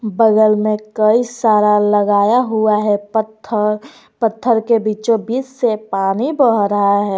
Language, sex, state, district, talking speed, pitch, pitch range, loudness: Hindi, female, Jharkhand, Garhwa, 135 wpm, 215 Hz, 210-230 Hz, -15 LUFS